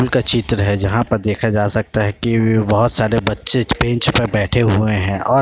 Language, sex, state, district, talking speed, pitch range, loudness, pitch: Hindi, male, Bihar, Kishanganj, 245 wpm, 105-120 Hz, -16 LUFS, 110 Hz